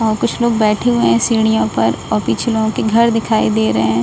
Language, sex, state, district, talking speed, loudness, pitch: Hindi, female, Bihar, Saran, 250 wpm, -15 LUFS, 220 Hz